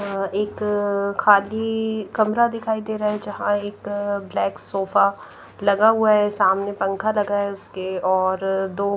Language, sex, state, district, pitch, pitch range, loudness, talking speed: Hindi, female, Punjab, Pathankot, 205 Hz, 195-210 Hz, -21 LUFS, 175 wpm